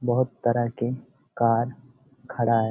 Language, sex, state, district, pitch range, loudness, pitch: Hindi, male, Chhattisgarh, Bastar, 115-130 Hz, -25 LUFS, 120 Hz